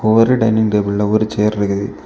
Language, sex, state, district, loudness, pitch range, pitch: Tamil, male, Tamil Nadu, Kanyakumari, -15 LUFS, 100-110 Hz, 105 Hz